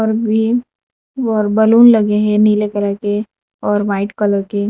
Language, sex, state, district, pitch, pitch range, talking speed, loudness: Hindi, female, Gujarat, Valsad, 210 Hz, 205-220 Hz, 140 wpm, -14 LUFS